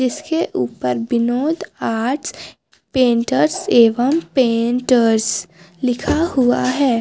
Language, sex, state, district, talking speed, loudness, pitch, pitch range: Hindi, female, Jharkhand, Garhwa, 85 wpm, -17 LUFS, 250 Hz, 230-275 Hz